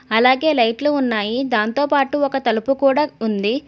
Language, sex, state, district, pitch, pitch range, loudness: Telugu, female, Telangana, Hyderabad, 265 Hz, 225-285 Hz, -18 LUFS